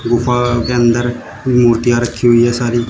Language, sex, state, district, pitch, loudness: Hindi, male, Uttar Pradesh, Shamli, 120 Hz, -13 LUFS